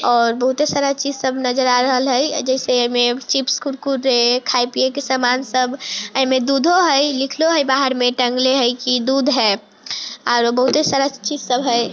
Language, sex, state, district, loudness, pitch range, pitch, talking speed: Maithili, female, Bihar, Sitamarhi, -17 LUFS, 245-275 Hz, 260 Hz, 180 wpm